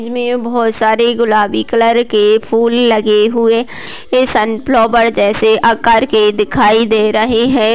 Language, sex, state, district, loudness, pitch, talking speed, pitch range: Hindi, female, Uttar Pradesh, Gorakhpur, -11 LUFS, 230 Hz, 140 wpm, 215-235 Hz